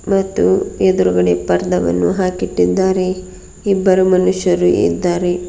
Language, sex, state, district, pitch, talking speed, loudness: Kannada, female, Karnataka, Bidar, 180 Hz, 85 wpm, -15 LUFS